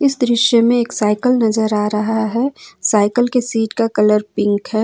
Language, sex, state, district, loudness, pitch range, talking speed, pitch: Hindi, female, Jharkhand, Ranchi, -16 LUFS, 210-245 Hz, 200 wpm, 225 Hz